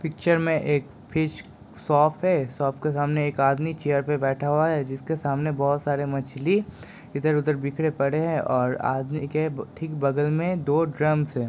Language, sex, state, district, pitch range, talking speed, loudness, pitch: Hindi, male, Uttar Pradesh, Jalaun, 140-155 Hz, 175 wpm, -24 LUFS, 150 Hz